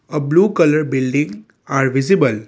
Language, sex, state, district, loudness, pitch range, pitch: English, male, Assam, Kamrup Metropolitan, -16 LUFS, 130-155 Hz, 140 Hz